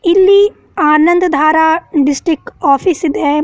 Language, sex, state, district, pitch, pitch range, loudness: Kannada, female, Karnataka, Bidar, 320 Hz, 300-360 Hz, -11 LUFS